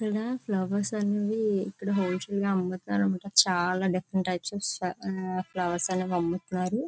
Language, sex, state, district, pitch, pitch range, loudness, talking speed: Telugu, female, Andhra Pradesh, Visakhapatnam, 190 Hz, 180-205 Hz, -28 LUFS, 130 wpm